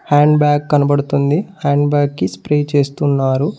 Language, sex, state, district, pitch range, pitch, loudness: Telugu, male, Telangana, Mahabubabad, 140-150 Hz, 145 Hz, -15 LUFS